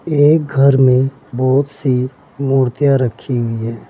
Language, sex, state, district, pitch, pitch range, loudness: Hindi, male, Uttar Pradesh, Saharanpur, 135 Hz, 125-140 Hz, -15 LUFS